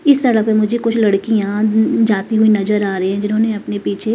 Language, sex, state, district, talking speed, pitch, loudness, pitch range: Hindi, female, Himachal Pradesh, Shimla, 215 wpm, 215 Hz, -15 LUFS, 205-225 Hz